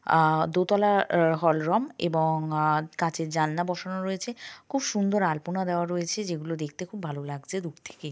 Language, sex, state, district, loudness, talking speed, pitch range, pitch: Bengali, female, West Bengal, North 24 Parganas, -27 LUFS, 160 wpm, 155-190 Hz, 170 Hz